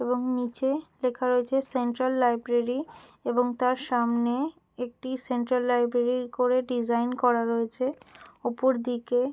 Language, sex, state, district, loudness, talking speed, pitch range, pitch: Bengali, female, West Bengal, Jalpaiguri, -27 LUFS, 115 wpm, 240-255 Hz, 250 Hz